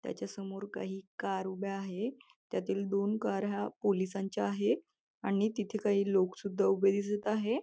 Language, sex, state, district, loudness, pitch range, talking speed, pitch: Marathi, female, Maharashtra, Nagpur, -34 LUFS, 195-210 Hz, 150 wpm, 200 Hz